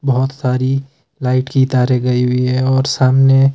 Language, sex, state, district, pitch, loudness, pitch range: Hindi, male, Himachal Pradesh, Shimla, 130 Hz, -15 LUFS, 125-135 Hz